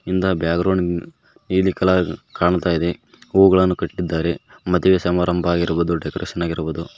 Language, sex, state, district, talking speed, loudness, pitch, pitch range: Kannada, male, Karnataka, Koppal, 95 wpm, -19 LUFS, 90 Hz, 85-95 Hz